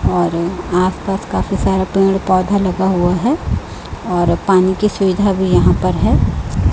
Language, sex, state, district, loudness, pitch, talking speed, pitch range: Hindi, male, Chhattisgarh, Raipur, -15 LUFS, 190 Hz, 160 wpm, 180-195 Hz